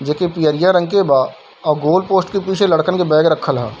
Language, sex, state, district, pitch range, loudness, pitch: Hindi, male, Bihar, Darbhanga, 150-185 Hz, -15 LUFS, 170 Hz